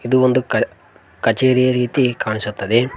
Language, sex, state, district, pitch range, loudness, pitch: Kannada, male, Karnataka, Koppal, 115-130 Hz, -17 LUFS, 125 Hz